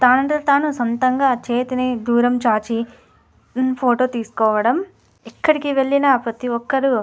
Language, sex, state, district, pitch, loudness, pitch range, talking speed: Telugu, female, Andhra Pradesh, Anantapur, 255 Hz, -18 LUFS, 235-270 Hz, 95 wpm